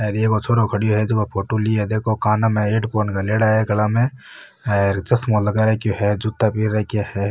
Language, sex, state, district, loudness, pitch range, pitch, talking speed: Marwari, male, Rajasthan, Nagaur, -19 LUFS, 105-110 Hz, 110 Hz, 215 wpm